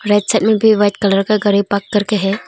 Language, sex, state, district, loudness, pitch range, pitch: Hindi, female, Arunachal Pradesh, Longding, -14 LUFS, 200-215 Hz, 205 Hz